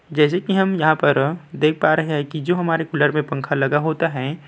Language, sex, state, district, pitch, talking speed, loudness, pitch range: Hindi, male, Uttarakhand, Tehri Garhwal, 155 Hz, 255 wpm, -19 LUFS, 150-165 Hz